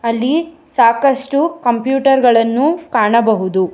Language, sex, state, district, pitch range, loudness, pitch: Kannada, female, Karnataka, Bangalore, 230-285 Hz, -14 LUFS, 250 Hz